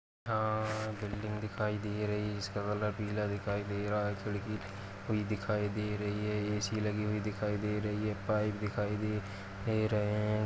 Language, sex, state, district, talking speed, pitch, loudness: Hindi, female, Uttar Pradesh, Varanasi, 170 wpm, 105 Hz, -35 LUFS